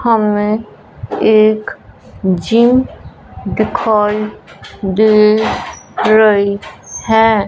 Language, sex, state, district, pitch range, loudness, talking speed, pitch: Hindi, male, Punjab, Fazilka, 205-220 Hz, -13 LUFS, 55 wpm, 215 Hz